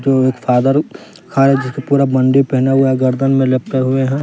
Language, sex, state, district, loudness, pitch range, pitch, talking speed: Hindi, male, Bihar, West Champaran, -14 LUFS, 130-135 Hz, 135 Hz, 200 wpm